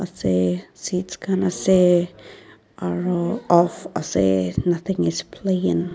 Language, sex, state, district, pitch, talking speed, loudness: Nagamese, female, Nagaland, Dimapur, 175 Hz, 110 wpm, -21 LUFS